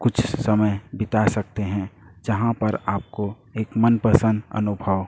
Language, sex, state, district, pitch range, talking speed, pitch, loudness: Hindi, male, Chhattisgarh, Raipur, 105-115 Hz, 130 wpm, 110 Hz, -22 LUFS